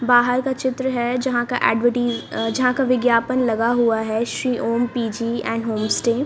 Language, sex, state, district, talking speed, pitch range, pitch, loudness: Hindi, female, Haryana, Rohtak, 190 wpm, 230-250 Hz, 240 Hz, -20 LUFS